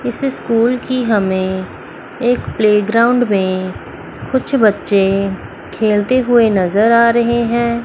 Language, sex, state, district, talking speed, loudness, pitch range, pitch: Hindi, female, Chandigarh, Chandigarh, 115 wpm, -14 LUFS, 200-245 Hz, 230 Hz